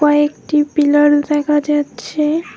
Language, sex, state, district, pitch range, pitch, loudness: Bengali, female, West Bengal, Alipurduar, 295-300 Hz, 295 Hz, -15 LUFS